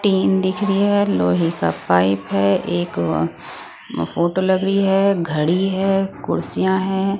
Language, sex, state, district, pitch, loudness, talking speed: Hindi, female, Bihar, West Champaran, 190 Hz, -19 LUFS, 140 wpm